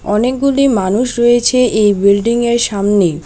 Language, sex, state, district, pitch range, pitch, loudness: Bengali, female, West Bengal, Alipurduar, 200-240 Hz, 235 Hz, -12 LUFS